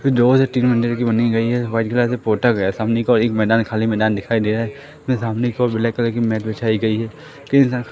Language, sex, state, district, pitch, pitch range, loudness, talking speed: Hindi, male, Madhya Pradesh, Katni, 115 Hz, 110-125 Hz, -18 LUFS, 275 wpm